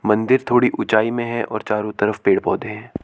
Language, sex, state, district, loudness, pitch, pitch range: Hindi, male, Chandigarh, Chandigarh, -19 LUFS, 110 Hz, 105-120 Hz